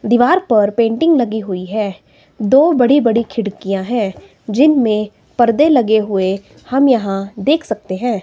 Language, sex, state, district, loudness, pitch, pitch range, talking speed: Hindi, female, Himachal Pradesh, Shimla, -15 LUFS, 225 Hz, 200-255 Hz, 145 wpm